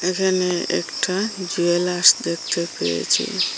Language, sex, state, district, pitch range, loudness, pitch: Bengali, female, Assam, Hailakandi, 170-185 Hz, -20 LUFS, 180 Hz